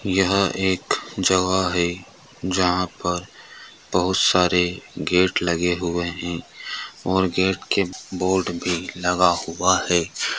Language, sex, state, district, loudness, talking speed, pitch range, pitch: Hindi, male, Andhra Pradesh, Visakhapatnam, -21 LUFS, 115 wpm, 90-95 Hz, 90 Hz